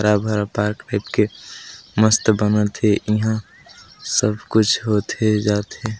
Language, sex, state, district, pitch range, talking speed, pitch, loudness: Hindi, male, Chhattisgarh, Balrampur, 105-110 Hz, 120 wpm, 105 Hz, -19 LUFS